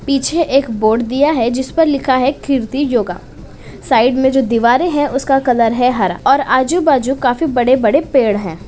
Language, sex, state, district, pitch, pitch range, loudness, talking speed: Hindi, female, Uttar Pradesh, Etah, 260 Hz, 240-280 Hz, -14 LUFS, 185 wpm